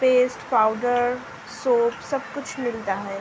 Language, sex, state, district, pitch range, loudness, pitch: Hindi, female, Uttar Pradesh, Budaun, 220-275 Hz, -23 LUFS, 245 Hz